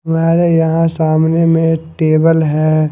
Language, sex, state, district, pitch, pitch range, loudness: Hindi, male, Punjab, Fazilka, 165 Hz, 155-165 Hz, -13 LUFS